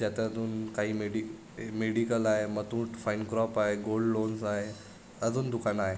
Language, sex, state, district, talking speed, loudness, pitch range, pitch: Marathi, male, Maharashtra, Sindhudurg, 150 wpm, -32 LUFS, 105-115 Hz, 110 Hz